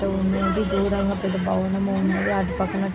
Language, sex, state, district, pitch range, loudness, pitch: Telugu, female, Andhra Pradesh, Krishna, 190-195 Hz, -23 LUFS, 195 Hz